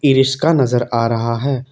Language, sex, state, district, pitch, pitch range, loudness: Hindi, male, Assam, Kamrup Metropolitan, 135 Hz, 115-140 Hz, -16 LUFS